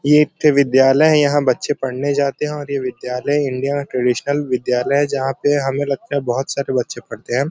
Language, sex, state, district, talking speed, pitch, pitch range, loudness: Hindi, male, Uttar Pradesh, Deoria, 225 wpm, 140 Hz, 130-145 Hz, -18 LUFS